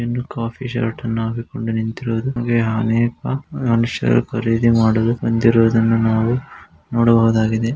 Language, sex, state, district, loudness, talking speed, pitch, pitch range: Kannada, male, Karnataka, Gulbarga, -18 LUFS, 115 wpm, 115 Hz, 115-120 Hz